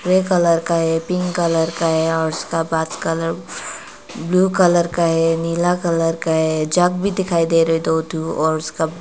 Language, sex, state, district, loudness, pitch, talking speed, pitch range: Hindi, female, Arunachal Pradesh, Papum Pare, -18 LUFS, 165 Hz, 195 wpm, 160-175 Hz